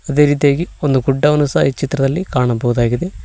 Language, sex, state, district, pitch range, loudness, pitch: Kannada, male, Karnataka, Koppal, 130-150 Hz, -15 LUFS, 140 Hz